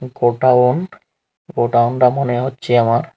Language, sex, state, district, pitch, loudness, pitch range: Bengali, male, Tripura, Unakoti, 125 Hz, -15 LUFS, 120-130 Hz